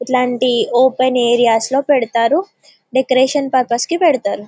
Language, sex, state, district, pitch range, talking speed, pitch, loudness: Telugu, female, Telangana, Karimnagar, 240-265 Hz, 120 wpm, 255 Hz, -15 LUFS